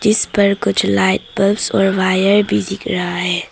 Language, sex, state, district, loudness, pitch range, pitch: Hindi, female, Arunachal Pradesh, Papum Pare, -15 LUFS, 175-205 Hz, 195 Hz